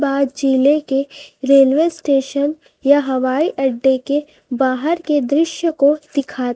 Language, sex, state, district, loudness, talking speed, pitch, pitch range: Hindi, female, Chhattisgarh, Raipur, -17 LUFS, 130 wpm, 280 Hz, 265-295 Hz